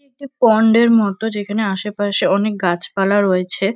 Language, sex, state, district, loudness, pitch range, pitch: Bengali, female, West Bengal, North 24 Parganas, -16 LUFS, 195-225 Hz, 205 Hz